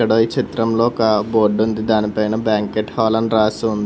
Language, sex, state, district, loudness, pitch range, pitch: Telugu, male, Telangana, Hyderabad, -17 LUFS, 110-115 Hz, 110 Hz